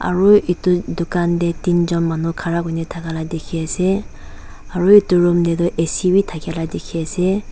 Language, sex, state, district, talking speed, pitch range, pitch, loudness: Nagamese, female, Nagaland, Dimapur, 175 wpm, 165-180 Hz, 170 Hz, -18 LUFS